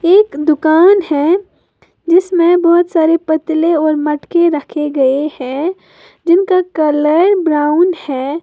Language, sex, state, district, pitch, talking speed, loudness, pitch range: Hindi, female, Uttar Pradesh, Lalitpur, 325 Hz, 115 wpm, -13 LUFS, 300-355 Hz